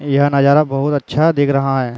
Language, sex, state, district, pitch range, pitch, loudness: Hindi, male, Uttar Pradesh, Varanasi, 135-145 Hz, 140 Hz, -14 LUFS